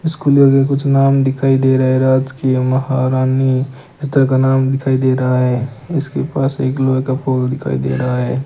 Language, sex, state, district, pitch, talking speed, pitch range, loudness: Hindi, male, Rajasthan, Bikaner, 130 Hz, 215 wpm, 130-135 Hz, -15 LUFS